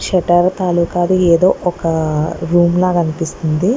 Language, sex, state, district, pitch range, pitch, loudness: Telugu, female, Andhra Pradesh, Guntur, 165-180 Hz, 175 Hz, -15 LUFS